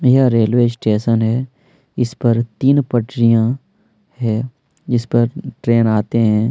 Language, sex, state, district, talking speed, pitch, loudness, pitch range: Hindi, male, Chhattisgarh, Kabirdham, 130 wpm, 120 Hz, -16 LUFS, 115-130 Hz